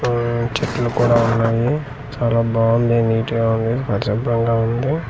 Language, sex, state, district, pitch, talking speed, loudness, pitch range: Telugu, male, Andhra Pradesh, Manyam, 115 Hz, 130 wpm, -18 LUFS, 115-120 Hz